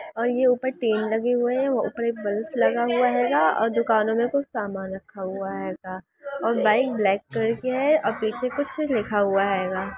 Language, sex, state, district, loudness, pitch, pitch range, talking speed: Hindi, female, Bihar, Sitamarhi, -23 LUFS, 230 Hz, 200-250 Hz, 115 wpm